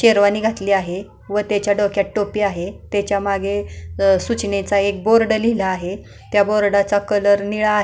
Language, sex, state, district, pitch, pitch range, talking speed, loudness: Marathi, female, Maharashtra, Pune, 205 Hz, 195-210 Hz, 135 wpm, -18 LUFS